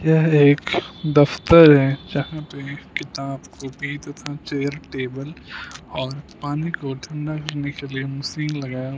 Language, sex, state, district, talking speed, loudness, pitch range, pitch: Hindi, male, Punjab, Kapurthala, 135 wpm, -20 LUFS, 135-150 Hz, 145 Hz